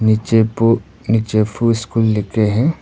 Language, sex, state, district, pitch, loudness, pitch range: Hindi, male, Arunachal Pradesh, Papum Pare, 110 Hz, -16 LUFS, 110-115 Hz